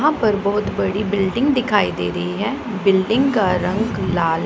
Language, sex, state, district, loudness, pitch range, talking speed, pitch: Hindi, female, Punjab, Pathankot, -19 LUFS, 185-230 Hz, 175 wpm, 205 Hz